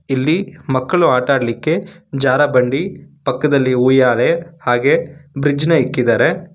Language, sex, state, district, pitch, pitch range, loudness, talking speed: Kannada, male, Karnataka, Bangalore, 140 Hz, 130-165 Hz, -15 LUFS, 100 wpm